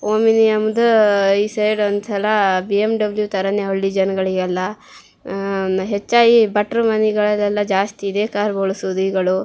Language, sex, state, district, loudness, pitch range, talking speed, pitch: Kannada, female, Karnataka, Shimoga, -17 LUFS, 195-215 Hz, 120 wpm, 205 Hz